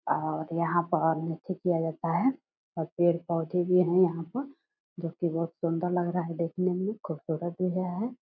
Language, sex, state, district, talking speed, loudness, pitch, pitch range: Hindi, female, Bihar, Purnia, 190 wpm, -29 LUFS, 175 Hz, 165-185 Hz